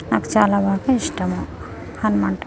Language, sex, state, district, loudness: Telugu, female, Telangana, Nalgonda, -20 LUFS